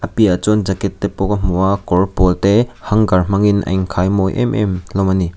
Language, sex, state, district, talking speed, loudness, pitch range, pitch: Mizo, male, Mizoram, Aizawl, 255 wpm, -16 LUFS, 95-105 Hz, 95 Hz